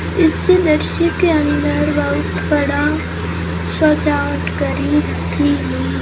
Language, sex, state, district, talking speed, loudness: Hindi, female, Rajasthan, Jaisalmer, 100 wpm, -16 LUFS